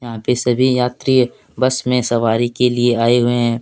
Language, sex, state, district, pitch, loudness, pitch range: Hindi, male, Jharkhand, Deoghar, 120 Hz, -16 LUFS, 120-125 Hz